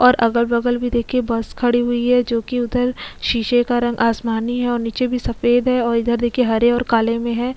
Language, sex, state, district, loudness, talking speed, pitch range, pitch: Hindi, female, Goa, North and South Goa, -18 LUFS, 230 wpm, 235-245 Hz, 240 Hz